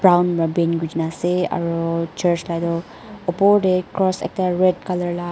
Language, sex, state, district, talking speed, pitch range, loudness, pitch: Nagamese, female, Nagaland, Dimapur, 180 wpm, 165-185 Hz, -20 LUFS, 175 Hz